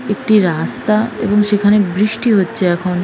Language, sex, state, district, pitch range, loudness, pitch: Bengali, female, West Bengal, North 24 Parganas, 185-215 Hz, -14 LUFS, 210 Hz